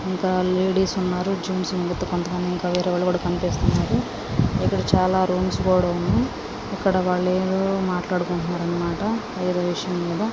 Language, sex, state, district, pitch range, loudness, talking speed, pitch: Telugu, female, Andhra Pradesh, Srikakulam, 180-185 Hz, -23 LUFS, 105 wpm, 180 Hz